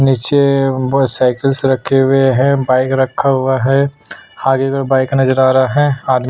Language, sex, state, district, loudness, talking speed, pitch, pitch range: Hindi, male, Chhattisgarh, Sukma, -13 LUFS, 170 wpm, 135 Hz, 130-135 Hz